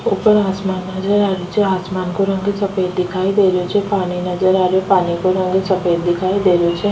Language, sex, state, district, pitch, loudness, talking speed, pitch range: Rajasthani, female, Rajasthan, Nagaur, 190 Hz, -17 LUFS, 225 wpm, 180-195 Hz